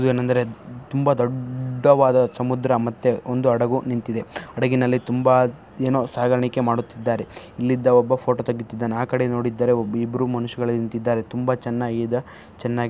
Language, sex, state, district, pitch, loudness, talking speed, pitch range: Kannada, male, Karnataka, Shimoga, 125 Hz, -22 LUFS, 130 wpm, 120-130 Hz